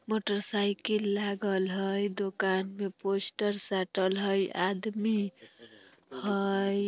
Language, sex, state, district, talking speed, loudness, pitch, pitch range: Bajjika, female, Bihar, Vaishali, 85 wpm, -31 LUFS, 195 Hz, 190-205 Hz